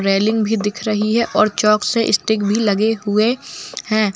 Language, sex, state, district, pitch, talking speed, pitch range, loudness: Hindi, female, Bihar, Jamui, 215 Hz, 185 wpm, 210-220 Hz, -17 LUFS